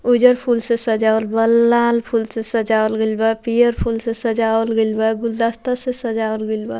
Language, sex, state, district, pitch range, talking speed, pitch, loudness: Bhojpuri, female, Bihar, Muzaffarpur, 220-235 Hz, 195 wpm, 225 Hz, -17 LUFS